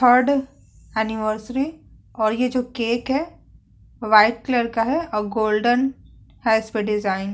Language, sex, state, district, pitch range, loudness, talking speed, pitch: Hindi, female, Uttar Pradesh, Budaun, 215-255 Hz, -21 LUFS, 140 wpm, 230 Hz